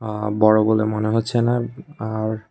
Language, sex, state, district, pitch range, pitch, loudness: Bengali, male, Tripura, West Tripura, 110-115 Hz, 110 Hz, -20 LUFS